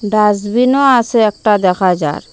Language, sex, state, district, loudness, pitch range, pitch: Bengali, female, Assam, Hailakandi, -12 LUFS, 190-235 Hz, 210 Hz